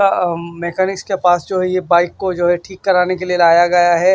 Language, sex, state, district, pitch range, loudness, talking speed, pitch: Hindi, male, Maharashtra, Washim, 175-190 Hz, -15 LUFS, 260 wpm, 180 Hz